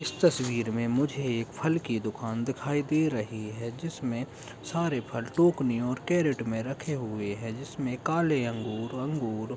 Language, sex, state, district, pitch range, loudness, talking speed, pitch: Hindi, male, Uttar Pradesh, Etah, 115-145 Hz, -30 LUFS, 170 wpm, 125 Hz